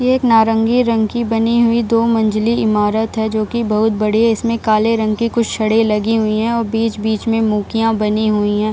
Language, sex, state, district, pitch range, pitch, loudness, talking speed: Hindi, female, Bihar, Jahanabad, 215-230 Hz, 225 Hz, -15 LUFS, 220 wpm